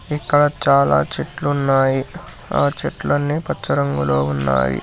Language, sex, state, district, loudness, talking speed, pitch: Telugu, male, Telangana, Hyderabad, -18 LUFS, 110 wpm, 140 Hz